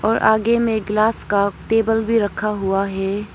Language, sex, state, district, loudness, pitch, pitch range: Hindi, female, Arunachal Pradesh, Papum Pare, -19 LUFS, 215 Hz, 200-225 Hz